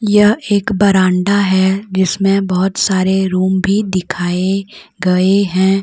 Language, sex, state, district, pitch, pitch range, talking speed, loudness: Hindi, female, Jharkhand, Deoghar, 190 Hz, 185-200 Hz, 125 wpm, -14 LUFS